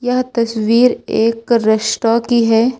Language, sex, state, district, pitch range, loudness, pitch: Hindi, female, Uttar Pradesh, Lucknow, 225-245 Hz, -14 LUFS, 230 Hz